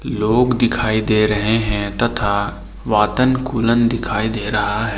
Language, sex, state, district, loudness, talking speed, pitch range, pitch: Hindi, male, Jharkhand, Ranchi, -17 LUFS, 145 wpm, 105-115 Hz, 110 Hz